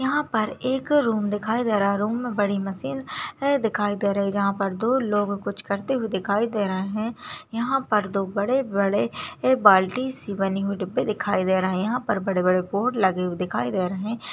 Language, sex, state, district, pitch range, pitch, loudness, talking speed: Hindi, female, Maharashtra, Solapur, 195-245 Hz, 205 Hz, -24 LUFS, 210 wpm